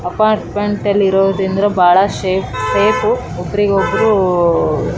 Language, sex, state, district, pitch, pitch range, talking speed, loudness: Kannada, female, Karnataka, Raichur, 195 Hz, 180-205 Hz, 85 wpm, -14 LUFS